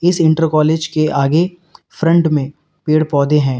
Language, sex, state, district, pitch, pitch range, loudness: Hindi, male, Uttar Pradesh, Lalitpur, 155 Hz, 150-165 Hz, -15 LUFS